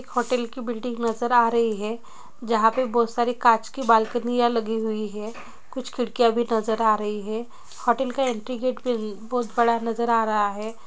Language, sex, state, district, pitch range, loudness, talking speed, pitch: Hindi, female, Andhra Pradesh, Anantapur, 220-245 Hz, -23 LUFS, 205 wpm, 235 Hz